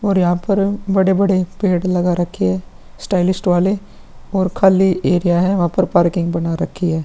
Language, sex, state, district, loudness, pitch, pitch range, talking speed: Hindi, male, Chhattisgarh, Sukma, -17 LUFS, 185 Hz, 175-190 Hz, 170 wpm